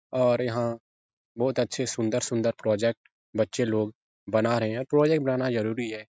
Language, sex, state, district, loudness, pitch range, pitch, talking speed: Hindi, male, Bihar, Jahanabad, -27 LUFS, 110-125 Hz, 115 Hz, 155 wpm